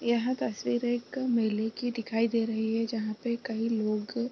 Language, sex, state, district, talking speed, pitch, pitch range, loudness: Hindi, female, Bihar, East Champaran, 195 wpm, 230 Hz, 220-235 Hz, -30 LUFS